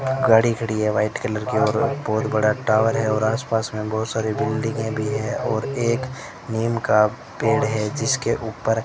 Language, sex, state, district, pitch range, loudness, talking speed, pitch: Hindi, male, Rajasthan, Bikaner, 110-120 Hz, -22 LUFS, 185 wpm, 110 Hz